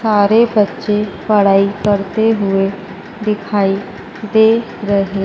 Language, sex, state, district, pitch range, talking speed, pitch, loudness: Hindi, female, Madhya Pradesh, Dhar, 195-220 Hz, 90 wpm, 205 Hz, -14 LUFS